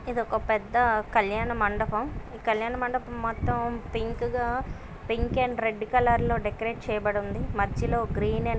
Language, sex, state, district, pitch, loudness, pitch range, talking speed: Telugu, female, Andhra Pradesh, Guntur, 230 Hz, -27 LUFS, 220-240 Hz, 155 wpm